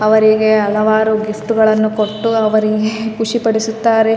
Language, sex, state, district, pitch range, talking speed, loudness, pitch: Kannada, female, Karnataka, Raichur, 215-225 Hz, 170 wpm, -14 LUFS, 220 Hz